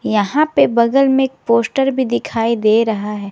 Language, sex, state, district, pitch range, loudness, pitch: Hindi, female, Jharkhand, Garhwa, 220-265 Hz, -15 LUFS, 235 Hz